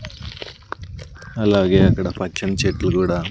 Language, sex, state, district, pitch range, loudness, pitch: Telugu, male, Andhra Pradesh, Sri Satya Sai, 90-95 Hz, -18 LUFS, 95 Hz